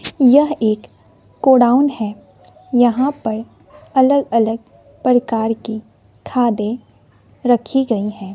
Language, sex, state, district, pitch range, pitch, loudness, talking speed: Hindi, female, Bihar, West Champaran, 220-260 Hz, 235 Hz, -16 LUFS, 100 wpm